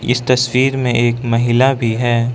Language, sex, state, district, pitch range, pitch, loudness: Hindi, male, Arunachal Pradesh, Lower Dibang Valley, 120-125 Hz, 120 Hz, -15 LUFS